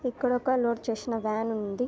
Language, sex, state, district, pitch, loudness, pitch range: Telugu, female, Andhra Pradesh, Anantapur, 235 Hz, -29 LUFS, 220-250 Hz